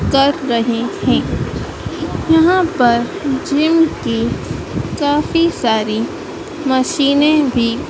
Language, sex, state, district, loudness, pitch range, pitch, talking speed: Hindi, female, Madhya Pradesh, Dhar, -16 LUFS, 245-330 Hz, 285 Hz, 85 wpm